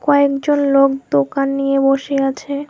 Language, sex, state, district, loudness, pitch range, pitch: Bengali, female, West Bengal, Alipurduar, -16 LUFS, 275-280 Hz, 275 Hz